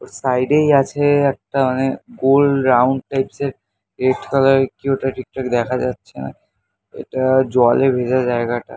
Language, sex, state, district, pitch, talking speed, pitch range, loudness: Bengali, male, West Bengal, North 24 Parganas, 130 Hz, 165 wpm, 125-135 Hz, -17 LUFS